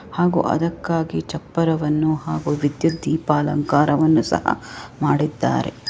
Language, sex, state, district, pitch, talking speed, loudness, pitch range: Kannada, female, Karnataka, Raichur, 155 Hz, 80 wpm, -20 LUFS, 145-165 Hz